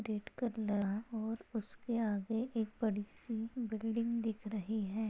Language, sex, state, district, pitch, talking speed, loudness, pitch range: Hindi, female, Maharashtra, Sindhudurg, 220 Hz, 120 wpm, -39 LUFS, 210-230 Hz